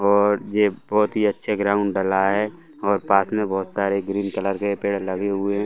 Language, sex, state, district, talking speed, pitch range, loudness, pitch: Hindi, male, Bihar, Saran, 210 wpm, 100-105 Hz, -22 LUFS, 100 Hz